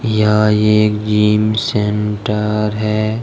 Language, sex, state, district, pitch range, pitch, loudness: Hindi, male, Jharkhand, Deoghar, 105-110 Hz, 105 Hz, -15 LUFS